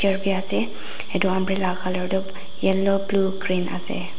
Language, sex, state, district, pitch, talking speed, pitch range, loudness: Nagamese, female, Nagaland, Dimapur, 190 Hz, 145 wpm, 185-195 Hz, -21 LUFS